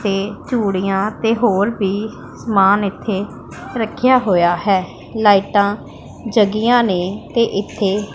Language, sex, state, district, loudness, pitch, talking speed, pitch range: Punjabi, female, Punjab, Pathankot, -17 LUFS, 205 Hz, 110 wpm, 195-225 Hz